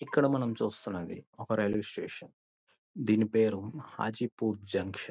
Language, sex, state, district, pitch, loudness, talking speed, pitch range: Telugu, male, Andhra Pradesh, Guntur, 110 Hz, -32 LUFS, 140 wpm, 105-115 Hz